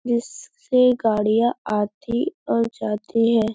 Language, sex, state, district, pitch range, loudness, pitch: Hindi, female, Uttar Pradesh, Etah, 220-250 Hz, -21 LUFS, 235 Hz